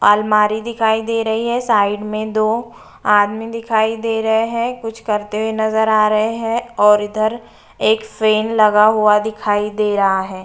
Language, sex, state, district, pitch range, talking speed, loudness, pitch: Hindi, female, Uttar Pradesh, Budaun, 210-225 Hz, 170 wpm, -16 LUFS, 220 Hz